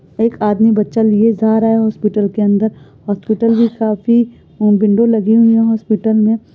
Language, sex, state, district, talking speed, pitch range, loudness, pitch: Hindi, female, Uttar Pradesh, Etah, 185 wpm, 210-225 Hz, -13 LUFS, 220 Hz